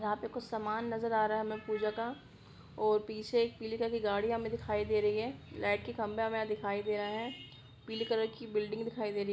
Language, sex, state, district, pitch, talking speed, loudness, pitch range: Hindi, female, Bihar, Purnia, 220 Hz, 230 wpm, -35 LUFS, 210-230 Hz